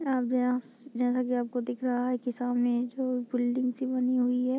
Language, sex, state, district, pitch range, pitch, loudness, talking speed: Hindi, female, Bihar, Muzaffarpur, 245-255 Hz, 250 Hz, -29 LUFS, 195 wpm